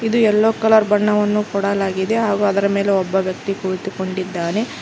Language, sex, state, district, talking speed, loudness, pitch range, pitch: Kannada, female, Karnataka, Koppal, 135 wpm, -18 LUFS, 190-215 Hz, 200 Hz